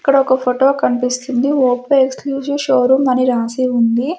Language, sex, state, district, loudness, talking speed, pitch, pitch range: Telugu, female, Andhra Pradesh, Sri Satya Sai, -15 LUFS, 145 wpm, 260 Hz, 250-275 Hz